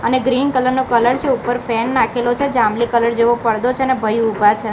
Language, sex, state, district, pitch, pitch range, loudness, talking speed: Gujarati, female, Gujarat, Gandhinagar, 240 Hz, 230-255 Hz, -16 LUFS, 240 wpm